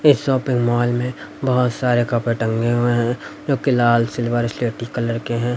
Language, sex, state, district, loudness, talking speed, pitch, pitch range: Hindi, male, Haryana, Rohtak, -19 LUFS, 195 wpm, 120 Hz, 120-125 Hz